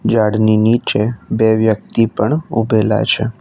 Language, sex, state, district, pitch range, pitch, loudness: Gujarati, male, Gujarat, Navsari, 110-115 Hz, 110 Hz, -15 LUFS